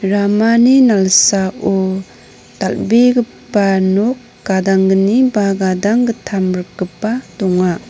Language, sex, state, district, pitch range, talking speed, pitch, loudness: Garo, female, Meghalaya, North Garo Hills, 190-230 Hz, 70 wpm, 195 Hz, -14 LUFS